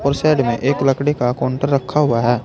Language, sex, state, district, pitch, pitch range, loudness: Hindi, male, Uttar Pradesh, Saharanpur, 140 Hz, 125-145 Hz, -17 LUFS